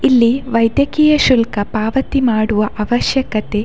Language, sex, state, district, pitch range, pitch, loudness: Kannada, female, Karnataka, Dakshina Kannada, 215-265 Hz, 240 Hz, -15 LUFS